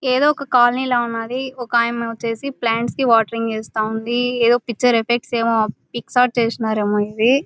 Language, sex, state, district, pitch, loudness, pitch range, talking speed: Telugu, female, Andhra Pradesh, Anantapur, 235 Hz, -18 LUFS, 225-245 Hz, 170 wpm